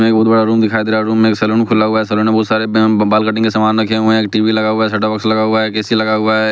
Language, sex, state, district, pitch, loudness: Hindi, male, Bihar, West Champaran, 110 Hz, -13 LUFS